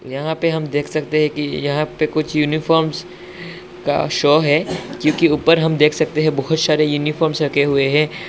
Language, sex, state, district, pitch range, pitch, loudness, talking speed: Hindi, male, Assam, Hailakandi, 150-160 Hz, 155 Hz, -17 LUFS, 190 wpm